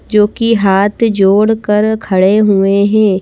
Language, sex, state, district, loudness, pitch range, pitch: Hindi, female, Madhya Pradesh, Bhopal, -11 LUFS, 195-220 Hz, 210 Hz